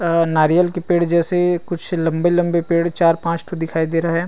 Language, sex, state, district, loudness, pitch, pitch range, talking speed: Chhattisgarhi, male, Chhattisgarh, Rajnandgaon, -17 LUFS, 170 Hz, 165-175 Hz, 210 wpm